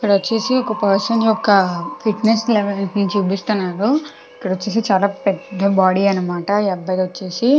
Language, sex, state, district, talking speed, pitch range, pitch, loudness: Telugu, female, Andhra Pradesh, Krishna, 135 wpm, 190-220 Hz, 200 Hz, -18 LUFS